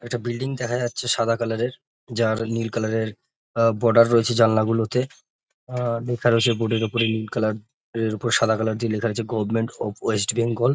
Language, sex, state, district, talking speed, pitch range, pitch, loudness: Bengali, male, West Bengal, North 24 Parganas, 190 wpm, 110-120 Hz, 115 Hz, -23 LUFS